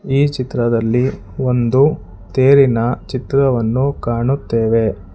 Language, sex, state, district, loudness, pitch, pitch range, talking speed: Kannada, male, Karnataka, Bangalore, -16 LUFS, 125 Hz, 115-135 Hz, 70 wpm